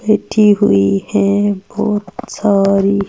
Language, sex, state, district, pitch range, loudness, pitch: Hindi, female, Delhi, New Delhi, 195-210 Hz, -14 LUFS, 200 Hz